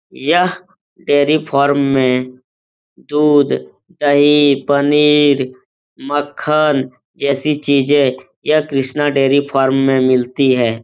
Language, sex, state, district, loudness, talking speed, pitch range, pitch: Hindi, male, Uttar Pradesh, Etah, -14 LUFS, 95 wpm, 130-145 Hz, 140 Hz